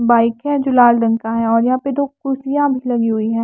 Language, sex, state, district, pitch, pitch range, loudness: Hindi, female, Maharashtra, Washim, 240 Hz, 230-275 Hz, -16 LUFS